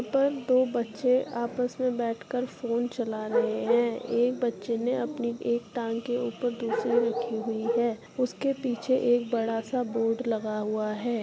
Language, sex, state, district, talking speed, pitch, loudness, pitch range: Hindi, female, Uttar Pradesh, Jyotiba Phule Nagar, 190 wpm, 235 Hz, -28 LUFS, 230-250 Hz